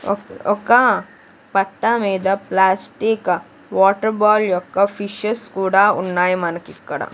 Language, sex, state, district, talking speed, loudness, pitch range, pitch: Telugu, female, Andhra Pradesh, Sri Satya Sai, 110 wpm, -18 LUFS, 190-215 Hz, 200 Hz